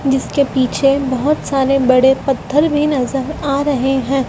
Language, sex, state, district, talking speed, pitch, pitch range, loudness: Hindi, female, Madhya Pradesh, Dhar, 155 wpm, 275 Hz, 265-280 Hz, -15 LUFS